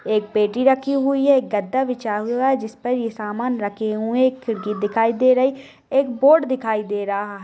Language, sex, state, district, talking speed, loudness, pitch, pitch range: Hindi, female, Bihar, Darbhanga, 225 wpm, -20 LUFS, 235 Hz, 210-260 Hz